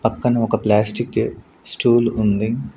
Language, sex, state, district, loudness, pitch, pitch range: Telugu, male, Andhra Pradesh, Sri Satya Sai, -19 LUFS, 110 Hz, 105-120 Hz